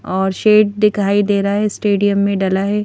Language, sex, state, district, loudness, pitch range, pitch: Hindi, female, Madhya Pradesh, Bhopal, -15 LUFS, 200-210 Hz, 200 Hz